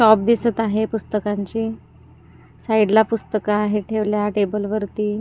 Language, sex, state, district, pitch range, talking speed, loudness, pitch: Marathi, female, Maharashtra, Gondia, 210-220 Hz, 115 wpm, -20 LUFS, 215 Hz